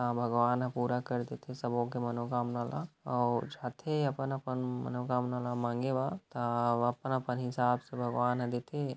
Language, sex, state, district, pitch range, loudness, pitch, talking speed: Chhattisgarhi, male, Chhattisgarh, Rajnandgaon, 120-130 Hz, -34 LUFS, 125 Hz, 160 wpm